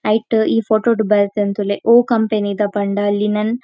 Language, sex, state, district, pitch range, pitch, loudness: Tulu, female, Karnataka, Dakshina Kannada, 205-225 Hz, 210 Hz, -16 LUFS